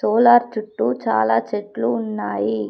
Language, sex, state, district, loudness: Telugu, female, Telangana, Komaram Bheem, -19 LUFS